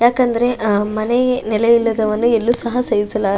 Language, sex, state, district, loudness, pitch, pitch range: Kannada, female, Karnataka, Shimoga, -16 LUFS, 230 Hz, 215-240 Hz